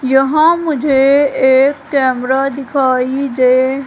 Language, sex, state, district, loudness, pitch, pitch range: Hindi, female, Madhya Pradesh, Katni, -13 LUFS, 270 Hz, 260-280 Hz